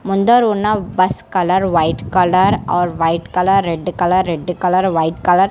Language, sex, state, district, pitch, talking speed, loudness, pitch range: Telugu, female, Telangana, Hyderabad, 185 Hz, 165 wpm, -15 LUFS, 175-190 Hz